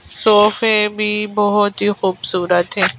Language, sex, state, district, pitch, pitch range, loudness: Hindi, female, Madhya Pradesh, Bhopal, 210 Hz, 190-210 Hz, -16 LUFS